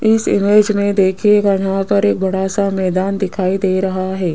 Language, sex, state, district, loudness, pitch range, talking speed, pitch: Hindi, female, Rajasthan, Jaipur, -15 LUFS, 190-200 Hz, 195 wpm, 195 Hz